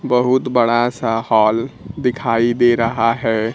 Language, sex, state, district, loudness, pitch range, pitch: Hindi, male, Bihar, Kaimur, -16 LUFS, 115-125 Hz, 115 Hz